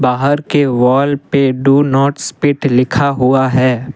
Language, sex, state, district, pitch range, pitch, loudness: Hindi, male, Assam, Kamrup Metropolitan, 130-140 Hz, 135 Hz, -13 LUFS